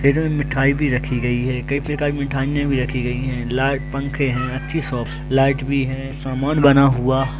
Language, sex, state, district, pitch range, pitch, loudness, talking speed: Hindi, male, Rajasthan, Churu, 130-140 Hz, 135 Hz, -20 LUFS, 205 wpm